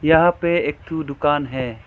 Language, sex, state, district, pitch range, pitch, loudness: Hindi, male, Arunachal Pradesh, Lower Dibang Valley, 140-160 Hz, 150 Hz, -20 LUFS